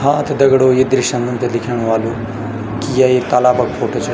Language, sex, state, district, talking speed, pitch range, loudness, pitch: Garhwali, male, Uttarakhand, Tehri Garhwal, 230 wpm, 115-130 Hz, -15 LUFS, 125 Hz